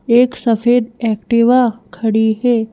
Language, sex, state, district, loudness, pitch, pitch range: Hindi, female, Madhya Pradesh, Bhopal, -15 LUFS, 235 Hz, 220-245 Hz